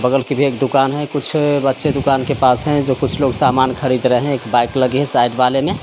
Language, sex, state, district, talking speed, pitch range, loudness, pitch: Hindi, male, Bihar, Samastipur, 265 wpm, 130-145 Hz, -16 LUFS, 135 Hz